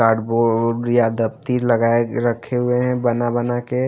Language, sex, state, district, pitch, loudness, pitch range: Hindi, male, Haryana, Jhajjar, 120 Hz, -19 LUFS, 115-125 Hz